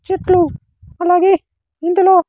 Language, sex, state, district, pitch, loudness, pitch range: Telugu, male, Andhra Pradesh, Sri Satya Sai, 365 Hz, -15 LUFS, 350-380 Hz